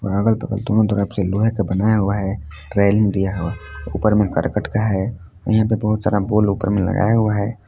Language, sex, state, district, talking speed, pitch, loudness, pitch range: Hindi, male, Jharkhand, Palamu, 210 wpm, 100 Hz, -19 LUFS, 95-110 Hz